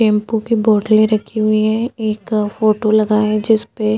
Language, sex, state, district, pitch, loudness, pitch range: Hindi, female, Uttar Pradesh, Jyotiba Phule Nagar, 215 Hz, -15 LUFS, 215-220 Hz